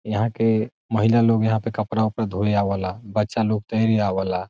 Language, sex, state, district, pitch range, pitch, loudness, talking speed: Bhojpuri, male, Bihar, Saran, 105-110 Hz, 110 Hz, -22 LUFS, 200 wpm